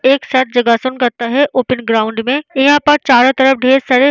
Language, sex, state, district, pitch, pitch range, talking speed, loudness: Hindi, female, Bihar, Vaishali, 260 Hz, 245-270 Hz, 220 wpm, -12 LUFS